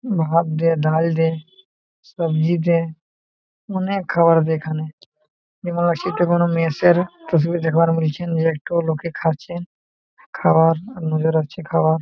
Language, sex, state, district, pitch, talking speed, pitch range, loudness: Bengali, male, West Bengal, Purulia, 165 Hz, 110 wpm, 160-175 Hz, -19 LUFS